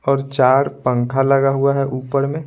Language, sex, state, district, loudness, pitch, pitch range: Hindi, male, Bihar, Patna, -17 LUFS, 135 Hz, 130-140 Hz